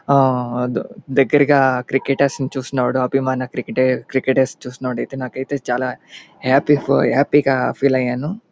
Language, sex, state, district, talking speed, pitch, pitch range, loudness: Telugu, male, Andhra Pradesh, Chittoor, 105 wpm, 130 Hz, 125-140 Hz, -18 LUFS